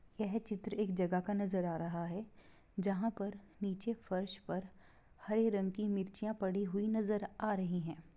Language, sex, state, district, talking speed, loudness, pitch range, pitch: Hindi, female, Bihar, Begusarai, 175 wpm, -38 LUFS, 185-210 Hz, 200 Hz